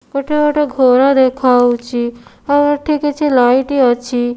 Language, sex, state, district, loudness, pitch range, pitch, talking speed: Odia, female, Odisha, Nuapada, -13 LUFS, 245-290 Hz, 260 Hz, 125 wpm